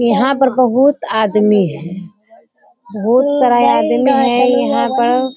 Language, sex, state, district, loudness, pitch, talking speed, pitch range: Hindi, female, Bihar, Sitamarhi, -13 LUFS, 250 Hz, 135 wpm, 210-265 Hz